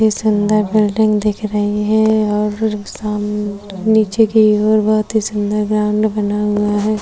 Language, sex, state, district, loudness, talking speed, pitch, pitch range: Hindi, female, Uttar Pradesh, Etah, -15 LUFS, 160 wpm, 210 Hz, 210-215 Hz